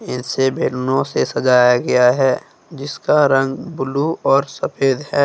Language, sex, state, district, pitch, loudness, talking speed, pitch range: Hindi, male, Jharkhand, Deoghar, 135 Hz, -17 LUFS, 135 wpm, 125-140 Hz